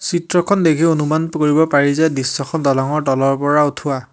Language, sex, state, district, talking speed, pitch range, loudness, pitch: Assamese, male, Assam, Hailakandi, 160 wpm, 140-160 Hz, -16 LUFS, 150 Hz